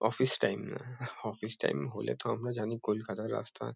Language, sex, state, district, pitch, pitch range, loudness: Bengali, male, West Bengal, Kolkata, 115 Hz, 110-125 Hz, -35 LUFS